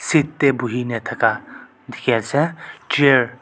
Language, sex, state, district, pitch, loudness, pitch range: Nagamese, male, Nagaland, Kohima, 130 Hz, -19 LUFS, 120-145 Hz